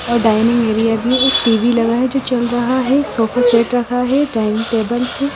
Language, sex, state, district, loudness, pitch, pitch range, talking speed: Hindi, female, Himachal Pradesh, Shimla, -15 LUFS, 240 Hz, 230-255 Hz, 190 wpm